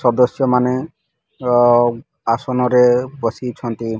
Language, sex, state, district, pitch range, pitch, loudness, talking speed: Odia, male, Odisha, Malkangiri, 120-125 Hz, 125 Hz, -17 LUFS, 90 wpm